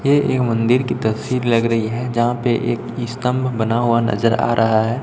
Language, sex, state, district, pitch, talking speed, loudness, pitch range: Hindi, male, Chhattisgarh, Raipur, 120 Hz, 215 wpm, -18 LUFS, 115-125 Hz